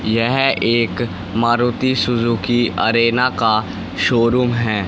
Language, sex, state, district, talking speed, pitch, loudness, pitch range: Hindi, male, Haryana, Rohtak, 100 wpm, 115 Hz, -17 LUFS, 110-120 Hz